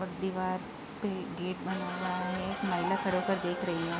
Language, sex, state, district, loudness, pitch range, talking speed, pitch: Hindi, female, Bihar, Purnia, -33 LUFS, 180-190 Hz, 195 wpm, 185 Hz